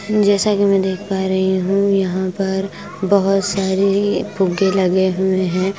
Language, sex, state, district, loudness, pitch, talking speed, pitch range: Hindi, female, Bihar, West Champaran, -17 LUFS, 195 Hz, 165 wpm, 190-200 Hz